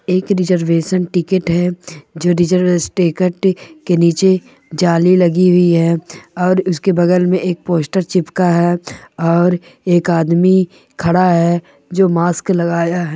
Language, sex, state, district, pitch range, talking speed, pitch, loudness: Hindi, female, Andhra Pradesh, Guntur, 170-185 Hz, 135 wpm, 175 Hz, -14 LUFS